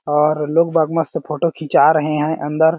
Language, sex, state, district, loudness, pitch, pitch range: Hindi, male, Chhattisgarh, Balrampur, -17 LUFS, 155 Hz, 150-160 Hz